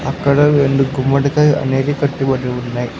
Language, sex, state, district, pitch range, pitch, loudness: Telugu, male, Andhra Pradesh, Sri Satya Sai, 135-145 Hz, 135 Hz, -15 LUFS